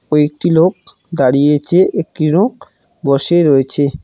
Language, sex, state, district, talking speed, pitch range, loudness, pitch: Bengali, male, West Bengal, Cooch Behar, 105 wpm, 140-180 Hz, -13 LUFS, 155 Hz